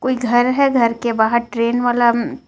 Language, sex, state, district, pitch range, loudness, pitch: Hindi, female, Jharkhand, Ranchi, 235-255 Hz, -16 LUFS, 240 Hz